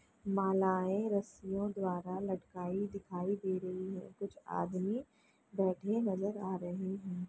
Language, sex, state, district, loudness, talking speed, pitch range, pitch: Hindi, female, Bihar, Jamui, -37 LUFS, 125 wpm, 185-200 Hz, 190 Hz